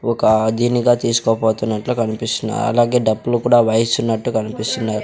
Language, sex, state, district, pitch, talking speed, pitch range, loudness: Telugu, male, Andhra Pradesh, Sri Satya Sai, 115 Hz, 105 wpm, 110-120 Hz, -17 LUFS